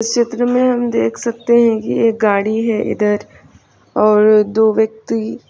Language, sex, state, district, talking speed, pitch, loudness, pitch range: Hindi, female, Uttar Pradesh, Hamirpur, 175 wpm, 220 Hz, -15 LUFS, 215-235 Hz